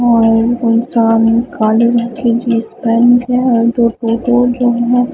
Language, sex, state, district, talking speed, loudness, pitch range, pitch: Hindi, female, Punjab, Fazilka, 140 wpm, -12 LUFS, 230-245 Hz, 235 Hz